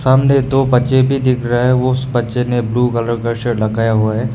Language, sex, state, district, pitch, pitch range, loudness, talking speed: Hindi, male, Meghalaya, West Garo Hills, 125 Hz, 115-130 Hz, -15 LUFS, 235 wpm